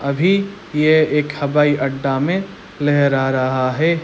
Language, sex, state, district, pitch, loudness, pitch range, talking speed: Hindi, male, Chhattisgarh, Raigarh, 145 Hz, -17 LUFS, 135-165 Hz, 135 wpm